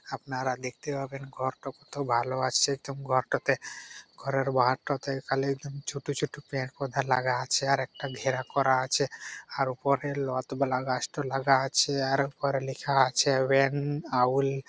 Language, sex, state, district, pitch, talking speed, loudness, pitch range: Bengali, male, West Bengal, Purulia, 135 Hz, 155 wpm, -28 LUFS, 130-140 Hz